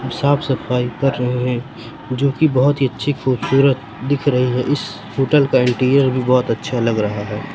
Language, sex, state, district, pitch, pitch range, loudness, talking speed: Hindi, male, Madhya Pradesh, Katni, 130 Hz, 125-140 Hz, -17 LUFS, 190 wpm